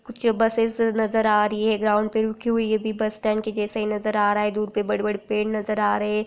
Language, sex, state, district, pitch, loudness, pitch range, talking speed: Hindi, female, Chhattisgarh, Raigarh, 215 Hz, -23 LUFS, 210-220 Hz, 260 wpm